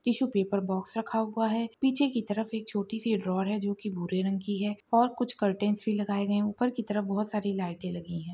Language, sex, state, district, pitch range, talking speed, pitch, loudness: Hindi, female, Maharashtra, Solapur, 195-225 Hz, 245 wpm, 210 Hz, -30 LUFS